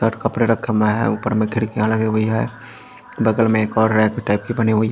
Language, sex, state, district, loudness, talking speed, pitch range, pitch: Hindi, male, Bihar, Patna, -18 LUFS, 245 wpm, 110-115 Hz, 110 Hz